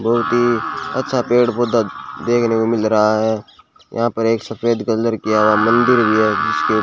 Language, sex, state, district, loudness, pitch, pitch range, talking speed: Hindi, male, Rajasthan, Bikaner, -17 LUFS, 115 Hz, 110-120 Hz, 195 wpm